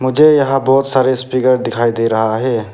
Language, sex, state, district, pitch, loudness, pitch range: Hindi, male, Arunachal Pradesh, Papum Pare, 130 Hz, -13 LUFS, 115-135 Hz